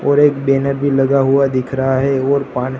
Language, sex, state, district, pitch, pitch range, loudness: Hindi, male, Gujarat, Gandhinagar, 135 Hz, 135-140 Hz, -15 LUFS